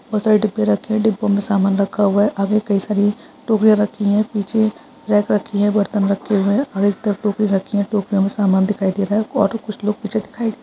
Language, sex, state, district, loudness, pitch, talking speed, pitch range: Hindi, female, Uttar Pradesh, Budaun, -18 LUFS, 205 Hz, 250 wpm, 200-215 Hz